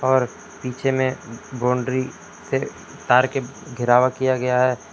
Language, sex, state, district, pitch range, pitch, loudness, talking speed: Hindi, male, Jharkhand, Palamu, 125-130 Hz, 130 Hz, -21 LUFS, 135 wpm